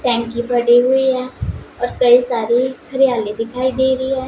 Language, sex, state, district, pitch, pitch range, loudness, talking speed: Hindi, female, Punjab, Pathankot, 250 Hz, 240-260 Hz, -16 LUFS, 155 wpm